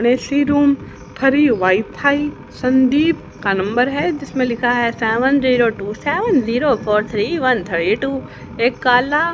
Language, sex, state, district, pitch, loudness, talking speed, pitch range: Hindi, female, Haryana, Jhajjar, 255 Hz, -17 LUFS, 155 wpm, 230-285 Hz